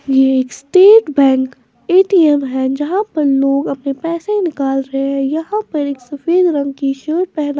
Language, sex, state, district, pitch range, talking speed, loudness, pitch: Hindi, female, Maharashtra, Washim, 270-335 Hz, 180 wpm, -14 LUFS, 285 Hz